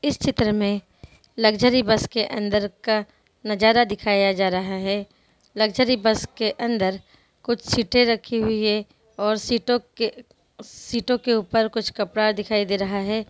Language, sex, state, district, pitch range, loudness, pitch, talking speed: Hindi, female, Bihar, Sitamarhi, 205-235 Hz, -22 LUFS, 215 Hz, 150 wpm